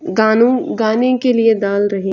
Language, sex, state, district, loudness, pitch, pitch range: Hindi, female, Chhattisgarh, Raigarh, -14 LUFS, 220 Hz, 205-240 Hz